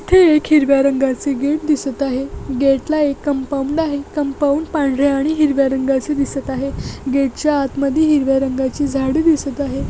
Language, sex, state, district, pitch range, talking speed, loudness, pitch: Marathi, female, Maharashtra, Nagpur, 270-295 Hz, 165 wpm, -17 LUFS, 280 Hz